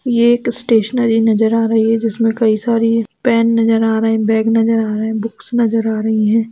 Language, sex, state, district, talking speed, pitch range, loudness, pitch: Hindi, female, Bihar, Darbhanga, 240 wpm, 220-230 Hz, -15 LUFS, 225 Hz